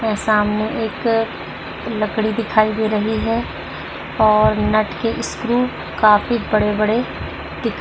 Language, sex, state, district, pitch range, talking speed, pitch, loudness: Hindi, female, Uttar Pradesh, Budaun, 215-225 Hz, 130 wpm, 220 Hz, -19 LUFS